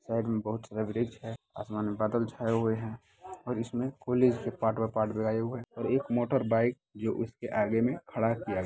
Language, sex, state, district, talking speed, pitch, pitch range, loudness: Hindi, male, Bihar, Bhagalpur, 200 wpm, 115 Hz, 110-120 Hz, -31 LUFS